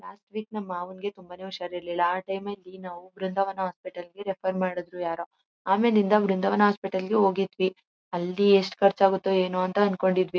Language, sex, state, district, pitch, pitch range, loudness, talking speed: Kannada, female, Karnataka, Mysore, 190 Hz, 185-200 Hz, -26 LUFS, 160 wpm